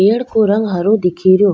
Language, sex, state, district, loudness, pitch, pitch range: Rajasthani, female, Rajasthan, Nagaur, -14 LUFS, 205 Hz, 185-220 Hz